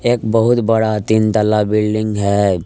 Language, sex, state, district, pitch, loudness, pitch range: Hindi, male, Jharkhand, Palamu, 110 Hz, -15 LUFS, 105-110 Hz